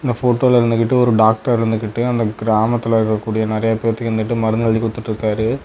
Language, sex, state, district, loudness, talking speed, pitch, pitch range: Tamil, male, Tamil Nadu, Namakkal, -17 LUFS, 140 wpm, 115 Hz, 110-115 Hz